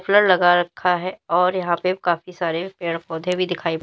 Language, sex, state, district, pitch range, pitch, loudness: Hindi, female, Uttar Pradesh, Lalitpur, 170-185 Hz, 180 Hz, -20 LUFS